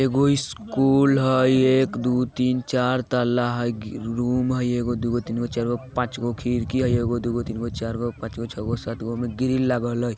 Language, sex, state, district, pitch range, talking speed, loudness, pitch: Hindi, male, Bihar, Vaishali, 120-130 Hz, 170 wpm, -23 LUFS, 120 Hz